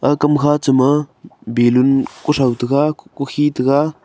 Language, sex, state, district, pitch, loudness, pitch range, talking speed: Wancho, male, Arunachal Pradesh, Longding, 140 Hz, -16 LUFS, 130-150 Hz, 135 wpm